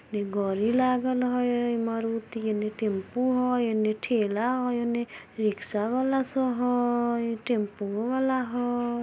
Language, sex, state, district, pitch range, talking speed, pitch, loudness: Maithili, female, Bihar, Samastipur, 215-250 Hz, 120 wpm, 235 Hz, -27 LUFS